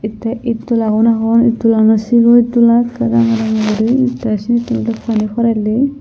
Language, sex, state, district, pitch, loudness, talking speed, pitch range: Chakma, female, Tripura, Unakoti, 230 Hz, -13 LUFS, 190 wpm, 220-235 Hz